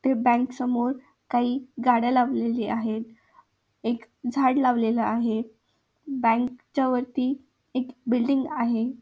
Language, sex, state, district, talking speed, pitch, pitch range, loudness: Marathi, female, Maharashtra, Aurangabad, 115 wpm, 245 Hz, 235-260 Hz, -25 LUFS